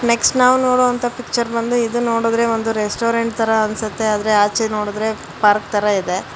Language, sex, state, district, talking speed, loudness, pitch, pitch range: Kannada, female, Karnataka, Bangalore, 160 wpm, -17 LUFS, 225 Hz, 210-235 Hz